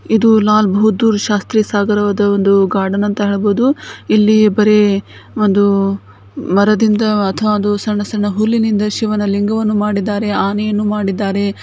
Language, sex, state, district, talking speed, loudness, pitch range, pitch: Kannada, female, Karnataka, Bijapur, 100 wpm, -14 LUFS, 200-215 Hz, 210 Hz